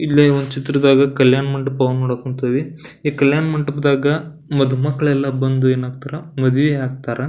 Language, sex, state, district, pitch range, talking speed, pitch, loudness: Kannada, male, Karnataka, Belgaum, 130-145 Hz, 125 wpm, 140 Hz, -17 LUFS